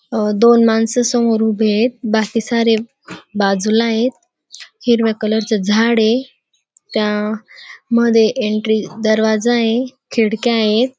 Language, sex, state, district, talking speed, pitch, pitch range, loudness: Marathi, female, Maharashtra, Dhule, 115 wpm, 225 Hz, 220-235 Hz, -15 LUFS